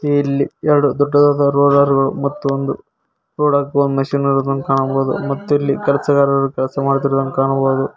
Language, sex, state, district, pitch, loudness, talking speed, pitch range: Kannada, male, Karnataka, Koppal, 140 Hz, -16 LUFS, 135 wpm, 135-140 Hz